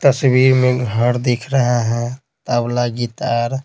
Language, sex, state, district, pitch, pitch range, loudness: Hindi, male, Bihar, Patna, 125 Hz, 120-130 Hz, -17 LUFS